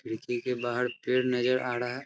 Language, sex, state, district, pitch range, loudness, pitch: Hindi, male, Uttar Pradesh, Hamirpur, 120-125 Hz, -29 LUFS, 125 Hz